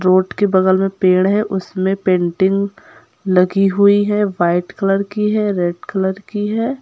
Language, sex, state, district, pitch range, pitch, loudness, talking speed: Hindi, female, Uttar Pradesh, Lucknow, 185-205 Hz, 195 Hz, -16 LUFS, 165 wpm